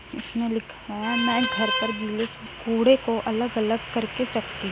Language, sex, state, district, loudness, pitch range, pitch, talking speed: Hindi, female, Uttar Pradesh, Muzaffarnagar, -25 LUFS, 220-250 Hz, 230 Hz, 190 wpm